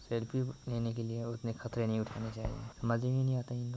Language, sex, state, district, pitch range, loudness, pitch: Hindi, male, Bihar, Muzaffarpur, 115-125 Hz, -36 LUFS, 115 Hz